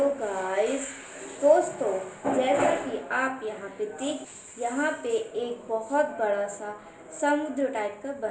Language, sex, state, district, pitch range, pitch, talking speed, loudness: Hindi, female, Bihar, Begusarai, 210-290 Hz, 250 Hz, 135 wpm, -28 LUFS